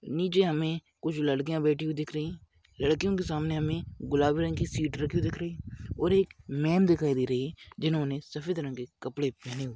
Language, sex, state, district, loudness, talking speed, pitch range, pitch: Hindi, male, Maharashtra, Aurangabad, -30 LUFS, 210 wpm, 140-165 Hz, 155 Hz